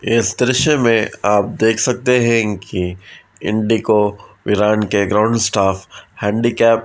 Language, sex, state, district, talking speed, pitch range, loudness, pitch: Hindi, male, Bihar, Vaishali, 130 wpm, 105-115 Hz, -16 LUFS, 110 Hz